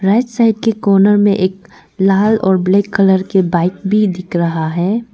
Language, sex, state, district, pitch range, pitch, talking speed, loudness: Hindi, female, Arunachal Pradesh, Lower Dibang Valley, 185-210 Hz, 195 Hz, 185 wpm, -13 LUFS